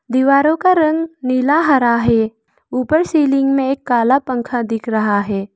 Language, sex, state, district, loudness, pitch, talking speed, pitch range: Hindi, female, Arunachal Pradesh, Lower Dibang Valley, -15 LUFS, 260 Hz, 160 wpm, 235-290 Hz